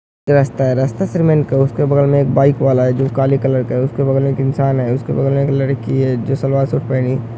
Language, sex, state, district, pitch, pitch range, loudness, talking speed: Hindi, male, Uttar Pradesh, Hamirpur, 135 Hz, 130-140 Hz, -15 LUFS, 275 wpm